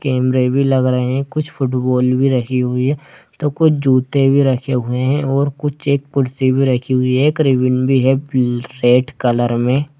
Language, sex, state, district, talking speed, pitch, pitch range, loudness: Hindi, male, Bihar, Darbhanga, 200 wpm, 130 Hz, 125-140 Hz, -16 LUFS